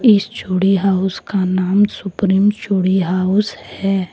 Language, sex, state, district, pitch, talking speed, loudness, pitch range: Hindi, female, Jharkhand, Deoghar, 195 Hz, 130 wpm, -17 LUFS, 185-200 Hz